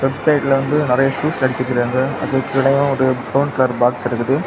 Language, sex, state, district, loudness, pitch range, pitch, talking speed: Tamil, male, Tamil Nadu, Kanyakumari, -17 LUFS, 130-140 Hz, 135 Hz, 185 wpm